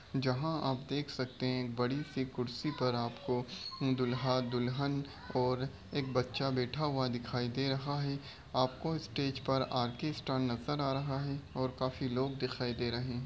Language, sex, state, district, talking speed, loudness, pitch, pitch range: Hindi, male, Bihar, Begusarai, 165 wpm, -36 LUFS, 130 Hz, 125-140 Hz